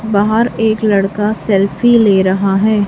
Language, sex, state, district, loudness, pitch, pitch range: Hindi, female, Chhattisgarh, Raipur, -13 LUFS, 210 Hz, 195-220 Hz